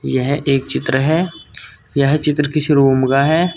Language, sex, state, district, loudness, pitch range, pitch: Hindi, male, Uttar Pradesh, Saharanpur, -16 LUFS, 135-155 Hz, 140 Hz